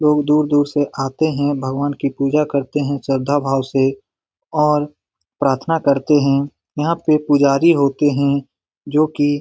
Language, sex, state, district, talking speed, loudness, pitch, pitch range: Hindi, male, Bihar, Lakhisarai, 160 wpm, -17 LUFS, 145 Hz, 140-150 Hz